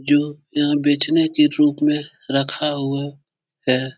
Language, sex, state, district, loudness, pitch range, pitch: Hindi, male, Bihar, Supaul, -19 LUFS, 140-150 Hz, 145 Hz